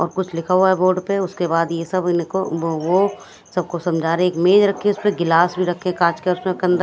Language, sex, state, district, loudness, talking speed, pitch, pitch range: Hindi, female, Punjab, Kapurthala, -19 LUFS, 245 wpm, 180 Hz, 170-190 Hz